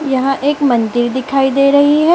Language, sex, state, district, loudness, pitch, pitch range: Hindi, female, Chhattisgarh, Raipur, -13 LUFS, 275 Hz, 260-285 Hz